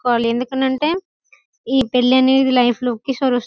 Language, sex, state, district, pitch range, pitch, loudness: Telugu, female, Telangana, Karimnagar, 245-265 Hz, 255 Hz, -17 LUFS